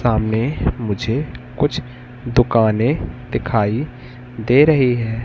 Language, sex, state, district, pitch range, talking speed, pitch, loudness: Hindi, male, Madhya Pradesh, Katni, 115-130 Hz, 90 wpm, 125 Hz, -18 LUFS